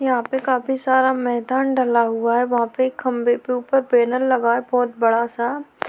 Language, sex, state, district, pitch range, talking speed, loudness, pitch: Hindi, female, Uttar Pradesh, Hamirpur, 235-260 Hz, 195 wpm, -19 LUFS, 250 Hz